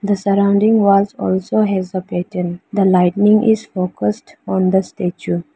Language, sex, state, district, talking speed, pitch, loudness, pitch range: English, female, Arunachal Pradesh, Lower Dibang Valley, 150 wpm, 190 Hz, -16 LUFS, 180-205 Hz